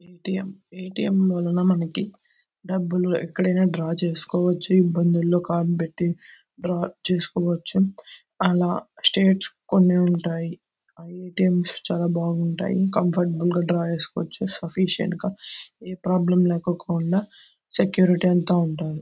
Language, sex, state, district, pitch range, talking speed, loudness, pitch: Telugu, male, Andhra Pradesh, Anantapur, 170-185 Hz, 115 wpm, -23 LUFS, 180 Hz